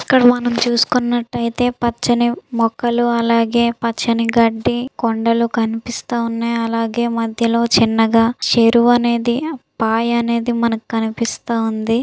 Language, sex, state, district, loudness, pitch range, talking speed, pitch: Telugu, female, Andhra Pradesh, Visakhapatnam, -17 LUFS, 230-240 Hz, 105 wpm, 235 Hz